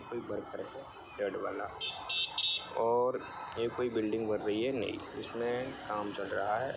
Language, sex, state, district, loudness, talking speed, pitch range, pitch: Hindi, male, Bihar, Sitamarhi, -35 LUFS, 135 wpm, 110-130 Hz, 120 Hz